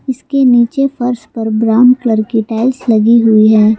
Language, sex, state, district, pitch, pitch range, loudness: Hindi, female, Jharkhand, Palamu, 230 Hz, 220-250 Hz, -11 LUFS